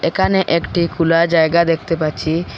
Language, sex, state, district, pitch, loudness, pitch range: Bengali, female, Assam, Hailakandi, 165 Hz, -16 LUFS, 165-170 Hz